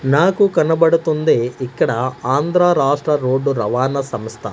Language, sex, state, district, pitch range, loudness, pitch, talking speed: Telugu, male, Andhra Pradesh, Manyam, 125-160 Hz, -16 LUFS, 140 Hz, 105 wpm